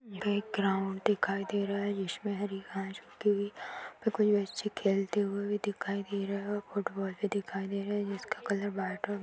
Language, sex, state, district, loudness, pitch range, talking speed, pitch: Hindi, female, Uttar Pradesh, Jyotiba Phule Nagar, -33 LUFS, 195-205 Hz, 200 wpm, 200 Hz